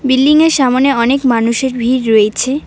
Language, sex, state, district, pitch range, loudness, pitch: Bengali, female, West Bengal, Cooch Behar, 235-275 Hz, -11 LUFS, 255 Hz